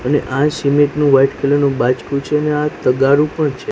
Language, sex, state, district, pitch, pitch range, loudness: Gujarati, male, Gujarat, Gandhinagar, 145 Hz, 135-150 Hz, -15 LUFS